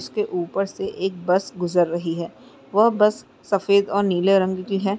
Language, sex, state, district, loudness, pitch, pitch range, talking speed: Hindi, female, Bihar, Araria, -21 LUFS, 195 Hz, 180-205 Hz, 190 wpm